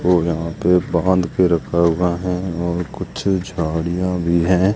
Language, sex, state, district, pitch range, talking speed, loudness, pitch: Hindi, male, Rajasthan, Jaisalmer, 85-90 Hz, 165 wpm, -19 LUFS, 90 Hz